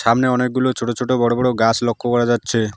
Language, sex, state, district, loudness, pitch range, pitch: Bengali, male, West Bengal, Alipurduar, -18 LUFS, 115-125 Hz, 120 Hz